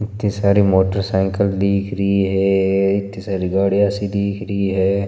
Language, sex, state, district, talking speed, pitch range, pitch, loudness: Marwari, male, Rajasthan, Nagaur, 165 wpm, 95-100 Hz, 100 Hz, -18 LUFS